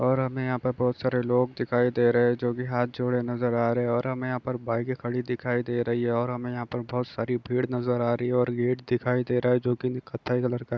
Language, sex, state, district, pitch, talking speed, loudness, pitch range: Hindi, male, Chhattisgarh, Balrampur, 125 Hz, 290 wpm, -27 LUFS, 120-125 Hz